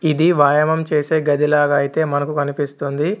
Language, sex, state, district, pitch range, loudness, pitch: Telugu, male, Telangana, Komaram Bheem, 145-160 Hz, -17 LUFS, 150 Hz